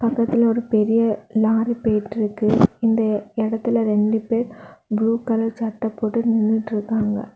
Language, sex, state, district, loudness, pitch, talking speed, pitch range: Tamil, female, Tamil Nadu, Kanyakumari, -20 LUFS, 225 Hz, 115 wpm, 215-230 Hz